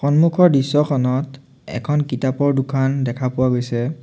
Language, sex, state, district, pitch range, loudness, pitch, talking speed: Assamese, male, Assam, Sonitpur, 130-145 Hz, -18 LUFS, 135 Hz, 105 wpm